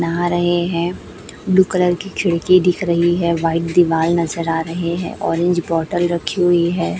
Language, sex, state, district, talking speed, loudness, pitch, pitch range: Hindi, female, Chhattisgarh, Raipur, 180 wpm, -17 LUFS, 175 Hz, 170-175 Hz